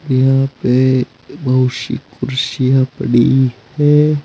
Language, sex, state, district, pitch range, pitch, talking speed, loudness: Hindi, male, Uttar Pradesh, Saharanpur, 130-140 Hz, 130 Hz, 100 wpm, -14 LUFS